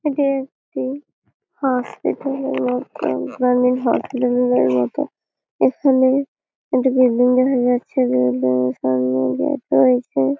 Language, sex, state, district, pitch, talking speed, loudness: Bengali, female, West Bengal, Malda, 250 Hz, 125 wpm, -19 LUFS